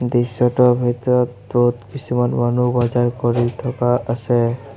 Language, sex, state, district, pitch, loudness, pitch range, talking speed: Assamese, male, Assam, Sonitpur, 120 Hz, -18 LUFS, 120-125 Hz, 115 wpm